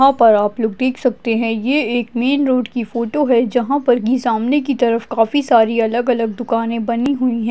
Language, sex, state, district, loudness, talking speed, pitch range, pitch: Hindi, female, Maharashtra, Chandrapur, -16 LUFS, 225 wpm, 230-255 Hz, 240 Hz